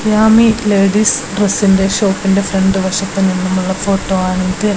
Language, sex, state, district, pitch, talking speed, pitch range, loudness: Malayalam, female, Kerala, Kozhikode, 195 Hz, 100 wpm, 190-205 Hz, -13 LUFS